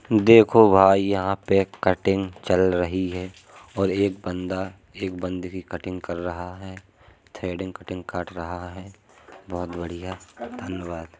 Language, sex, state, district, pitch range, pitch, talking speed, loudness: Hindi, male, Uttar Pradesh, Hamirpur, 90-95 Hz, 95 Hz, 140 wpm, -23 LUFS